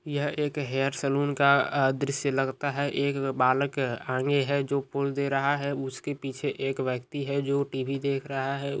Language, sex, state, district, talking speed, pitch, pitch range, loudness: Hindi, male, Andhra Pradesh, Chittoor, 185 wpm, 140 Hz, 135-140 Hz, -28 LUFS